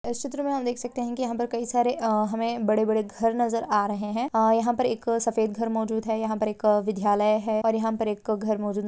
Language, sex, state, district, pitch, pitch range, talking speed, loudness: Hindi, female, Bihar, Sitamarhi, 225 Hz, 215-240 Hz, 245 wpm, -25 LUFS